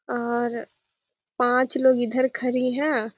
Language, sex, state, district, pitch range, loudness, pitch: Hindi, female, Bihar, Begusarai, 240-260 Hz, -23 LUFS, 250 Hz